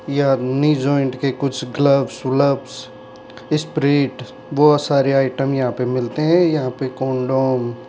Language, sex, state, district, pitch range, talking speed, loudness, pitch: Hindi, male, Rajasthan, Jaipur, 130-140 Hz, 145 wpm, -18 LUFS, 135 Hz